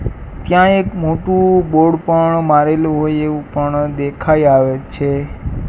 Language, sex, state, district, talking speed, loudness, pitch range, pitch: Gujarati, male, Gujarat, Gandhinagar, 125 wpm, -14 LUFS, 145-165 Hz, 155 Hz